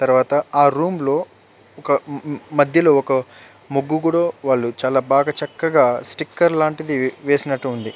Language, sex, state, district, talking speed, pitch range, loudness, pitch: Telugu, male, Andhra Pradesh, Chittoor, 135 wpm, 130-155 Hz, -19 LUFS, 140 Hz